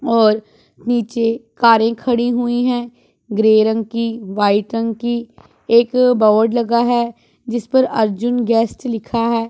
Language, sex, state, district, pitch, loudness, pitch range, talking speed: Hindi, female, Punjab, Pathankot, 230 Hz, -16 LUFS, 225-240 Hz, 140 wpm